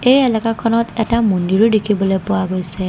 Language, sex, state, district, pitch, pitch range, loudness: Assamese, female, Assam, Kamrup Metropolitan, 215 Hz, 190-230 Hz, -16 LUFS